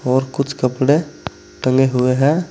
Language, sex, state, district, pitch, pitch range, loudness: Hindi, male, Uttar Pradesh, Saharanpur, 135 Hz, 130-145 Hz, -17 LUFS